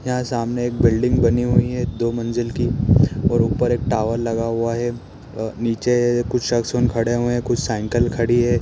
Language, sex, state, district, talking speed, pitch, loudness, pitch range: Hindi, male, Bihar, East Champaran, 190 wpm, 120 Hz, -20 LUFS, 115-120 Hz